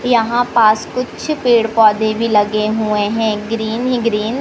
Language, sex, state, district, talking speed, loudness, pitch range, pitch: Hindi, male, Madhya Pradesh, Katni, 175 wpm, -15 LUFS, 215-240 Hz, 225 Hz